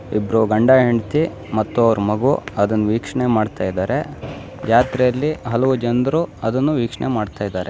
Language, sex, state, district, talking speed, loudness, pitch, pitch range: Kannada, male, Karnataka, Shimoga, 130 wpm, -18 LUFS, 115 Hz, 105-130 Hz